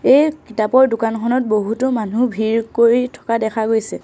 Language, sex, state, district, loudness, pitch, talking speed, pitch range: Assamese, female, Assam, Sonitpur, -17 LUFS, 230 Hz, 150 wpm, 220-250 Hz